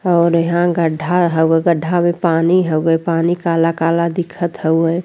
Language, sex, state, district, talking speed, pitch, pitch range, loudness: Bhojpuri, female, Uttar Pradesh, Deoria, 155 wpm, 170 Hz, 165-175 Hz, -15 LUFS